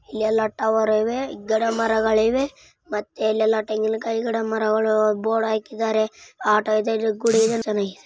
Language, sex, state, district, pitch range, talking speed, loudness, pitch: Kannada, male, Karnataka, Dakshina Kannada, 215-225 Hz, 125 wpm, -22 LUFS, 220 Hz